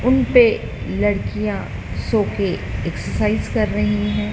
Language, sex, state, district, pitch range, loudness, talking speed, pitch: Hindi, female, Madhya Pradesh, Dhar, 100-105 Hz, -20 LUFS, 110 wpm, 105 Hz